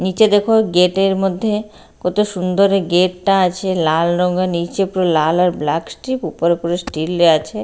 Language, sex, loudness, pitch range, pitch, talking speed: Bengali, female, -16 LUFS, 170-195 Hz, 180 Hz, 180 wpm